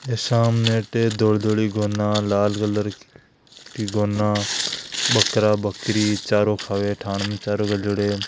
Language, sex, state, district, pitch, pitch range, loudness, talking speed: Marwari, male, Rajasthan, Nagaur, 105 Hz, 105-110 Hz, -21 LUFS, 95 wpm